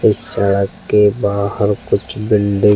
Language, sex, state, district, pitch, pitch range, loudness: Hindi, male, Chhattisgarh, Jashpur, 100 Hz, 100-105 Hz, -16 LUFS